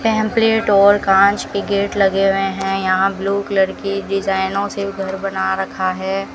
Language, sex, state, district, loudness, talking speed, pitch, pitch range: Hindi, female, Rajasthan, Bikaner, -17 LUFS, 170 wpm, 195 Hz, 195-200 Hz